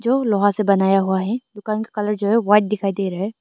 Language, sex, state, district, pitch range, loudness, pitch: Hindi, female, Arunachal Pradesh, Longding, 195-215 Hz, -19 LUFS, 210 Hz